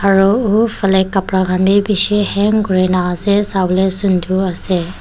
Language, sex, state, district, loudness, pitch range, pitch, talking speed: Nagamese, female, Nagaland, Dimapur, -14 LUFS, 185-205 Hz, 190 Hz, 165 wpm